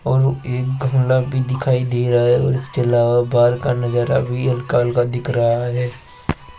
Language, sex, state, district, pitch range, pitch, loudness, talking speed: Hindi, male, Rajasthan, Jaipur, 120-130 Hz, 125 Hz, -18 LUFS, 190 wpm